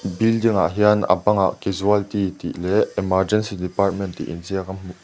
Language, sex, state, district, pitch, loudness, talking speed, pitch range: Mizo, male, Mizoram, Aizawl, 95 Hz, -20 LUFS, 165 wpm, 95-105 Hz